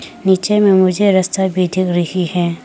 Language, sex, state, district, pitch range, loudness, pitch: Hindi, female, Arunachal Pradesh, Papum Pare, 180-195 Hz, -14 LUFS, 185 Hz